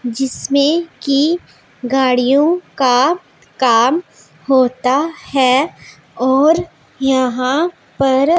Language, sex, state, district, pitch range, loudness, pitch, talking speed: Hindi, female, Punjab, Pathankot, 255-315 Hz, -15 LUFS, 270 Hz, 70 wpm